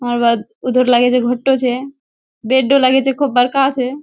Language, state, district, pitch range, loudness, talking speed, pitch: Surjapuri, Bihar, Kishanganj, 245-270 Hz, -14 LUFS, 195 wpm, 255 Hz